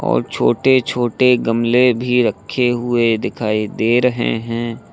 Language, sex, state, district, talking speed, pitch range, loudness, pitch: Hindi, male, Uttar Pradesh, Lucknow, 135 wpm, 115-125 Hz, -16 LUFS, 120 Hz